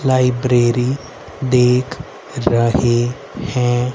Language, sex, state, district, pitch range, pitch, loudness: Hindi, male, Haryana, Rohtak, 120-130 Hz, 125 Hz, -17 LUFS